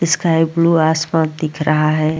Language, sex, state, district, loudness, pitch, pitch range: Hindi, female, Bihar, Vaishali, -16 LUFS, 160 Hz, 155-165 Hz